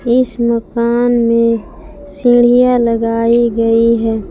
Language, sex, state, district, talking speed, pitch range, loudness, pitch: Hindi, female, Jharkhand, Palamu, 95 wpm, 230-240 Hz, -12 LUFS, 235 Hz